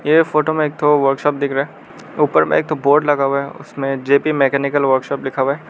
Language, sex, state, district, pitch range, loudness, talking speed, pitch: Hindi, male, Arunachal Pradesh, Lower Dibang Valley, 135-150 Hz, -16 LUFS, 265 wpm, 140 Hz